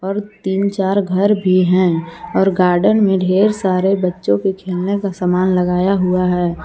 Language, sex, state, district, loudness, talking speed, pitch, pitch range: Hindi, female, Jharkhand, Palamu, -16 LUFS, 170 wpm, 185 Hz, 180-195 Hz